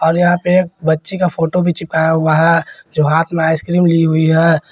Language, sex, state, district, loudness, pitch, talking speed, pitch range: Hindi, male, Jharkhand, Garhwa, -14 LUFS, 165 Hz, 230 wpm, 160-175 Hz